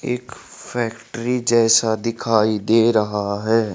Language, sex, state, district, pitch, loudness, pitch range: Hindi, male, Haryana, Rohtak, 115 Hz, -19 LUFS, 110-120 Hz